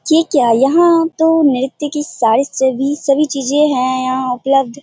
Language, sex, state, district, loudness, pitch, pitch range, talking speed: Hindi, female, Bihar, Purnia, -14 LUFS, 275 Hz, 260-300 Hz, 160 wpm